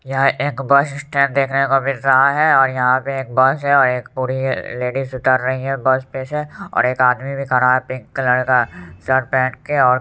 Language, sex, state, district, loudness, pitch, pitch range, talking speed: Hindi, male, Bihar, Supaul, -17 LUFS, 130 Hz, 130-140 Hz, 230 wpm